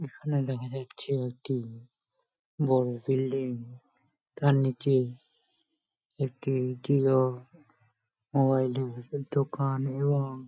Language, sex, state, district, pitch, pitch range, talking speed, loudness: Bengali, male, West Bengal, Malda, 135 Hz, 125-140 Hz, 80 wpm, -29 LUFS